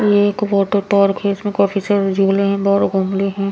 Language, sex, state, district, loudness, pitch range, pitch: Hindi, female, Bihar, Patna, -16 LUFS, 195-205 Hz, 200 Hz